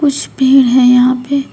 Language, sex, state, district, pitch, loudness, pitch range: Hindi, female, Uttar Pradesh, Shamli, 260 Hz, -10 LUFS, 250-275 Hz